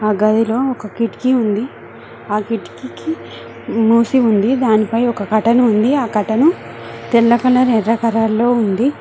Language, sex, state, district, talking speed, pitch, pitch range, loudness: Telugu, female, Telangana, Mahabubabad, 155 wpm, 225 Hz, 210-240 Hz, -15 LUFS